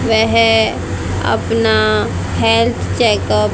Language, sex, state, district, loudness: Hindi, female, Haryana, Jhajjar, -14 LUFS